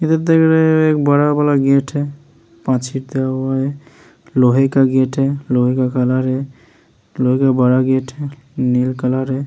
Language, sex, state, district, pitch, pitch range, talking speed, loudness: Hindi, male, Uttar Pradesh, Hamirpur, 135 Hz, 130-145 Hz, 145 wpm, -16 LUFS